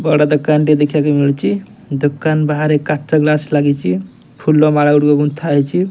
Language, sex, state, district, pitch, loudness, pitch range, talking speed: Odia, male, Odisha, Nuapada, 150 Hz, -14 LUFS, 145-155 Hz, 140 wpm